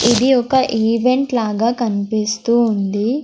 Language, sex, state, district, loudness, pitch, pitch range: Telugu, female, Andhra Pradesh, Sri Satya Sai, -16 LUFS, 235 Hz, 215-250 Hz